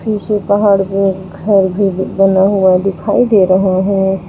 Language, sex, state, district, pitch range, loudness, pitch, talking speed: Hindi, female, Uttar Pradesh, Saharanpur, 190-200 Hz, -12 LUFS, 195 Hz, 155 wpm